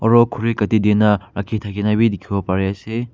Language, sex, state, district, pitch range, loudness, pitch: Nagamese, male, Nagaland, Kohima, 100-115 Hz, -18 LUFS, 105 Hz